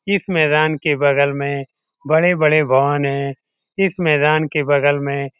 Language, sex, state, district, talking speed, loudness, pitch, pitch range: Hindi, male, Bihar, Jamui, 145 wpm, -17 LUFS, 150 Hz, 140-155 Hz